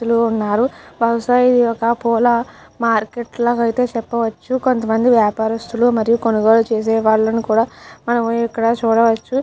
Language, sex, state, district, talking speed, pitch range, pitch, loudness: Telugu, female, Andhra Pradesh, Chittoor, 125 wpm, 225-240 Hz, 230 Hz, -16 LUFS